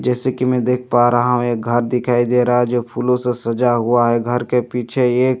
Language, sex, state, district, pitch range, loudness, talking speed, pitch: Hindi, male, Bihar, Katihar, 120-125 Hz, -17 LUFS, 280 wpm, 125 Hz